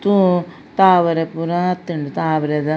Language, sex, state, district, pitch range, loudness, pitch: Tulu, female, Karnataka, Dakshina Kannada, 160-180 Hz, -17 LUFS, 170 Hz